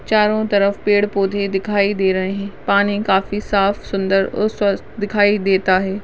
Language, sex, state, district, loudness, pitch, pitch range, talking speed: Hindi, female, Maharashtra, Chandrapur, -17 LUFS, 200 Hz, 195-205 Hz, 170 wpm